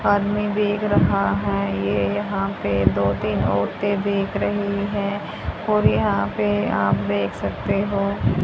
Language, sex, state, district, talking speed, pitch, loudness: Hindi, female, Haryana, Jhajjar, 150 wpm, 195 Hz, -21 LUFS